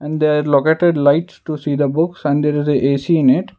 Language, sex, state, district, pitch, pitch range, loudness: English, male, Karnataka, Bangalore, 150 Hz, 145-160 Hz, -16 LUFS